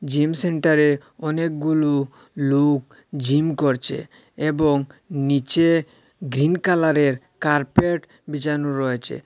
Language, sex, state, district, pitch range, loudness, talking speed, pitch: Bengali, male, Assam, Hailakandi, 140-155 Hz, -21 LUFS, 85 wpm, 145 Hz